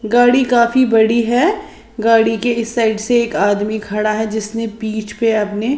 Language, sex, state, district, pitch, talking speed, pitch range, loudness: Hindi, female, Maharashtra, Washim, 225 Hz, 175 wpm, 215-235 Hz, -15 LUFS